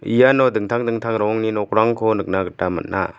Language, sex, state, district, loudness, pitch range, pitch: Garo, male, Meghalaya, West Garo Hills, -19 LUFS, 105-115 Hz, 110 Hz